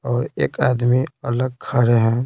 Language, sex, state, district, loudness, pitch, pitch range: Hindi, male, Bihar, Patna, -19 LUFS, 120 Hz, 120-130 Hz